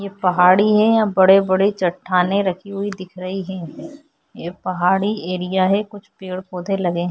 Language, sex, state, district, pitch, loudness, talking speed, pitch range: Hindi, female, Chhattisgarh, Korba, 190 Hz, -18 LUFS, 150 wpm, 180-200 Hz